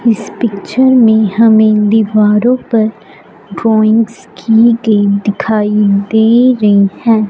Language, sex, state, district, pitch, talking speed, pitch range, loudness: Hindi, female, Punjab, Fazilka, 220 Hz, 105 wpm, 210-230 Hz, -10 LUFS